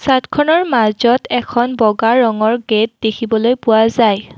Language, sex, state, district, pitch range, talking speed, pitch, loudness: Assamese, female, Assam, Kamrup Metropolitan, 220-245 Hz, 125 wpm, 230 Hz, -14 LUFS